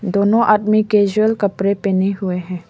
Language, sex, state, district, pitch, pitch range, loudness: Hindi, female, Arunachal Pradesh, Lower Dibang Valley, 200 Hz, 190-215 Hz, -16 LUFS